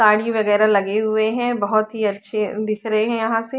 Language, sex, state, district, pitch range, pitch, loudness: Hindi, female, Chandigarh, Chandigarh, 210-225 Hz, 215 Hz, -19 LUFS